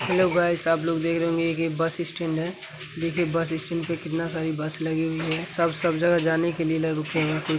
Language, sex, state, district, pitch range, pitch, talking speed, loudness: Hindi, female, Bihar, Gaya, 160-170 Hz, 165 Hz, 235 wpm, -25 LUFS